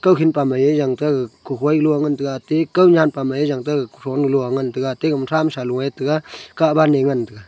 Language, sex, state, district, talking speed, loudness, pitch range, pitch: Wancho, male, Arunachal Pradesh, Longding, 240 wpm, -18 LUFS, 135-155 Hz, 145 Hz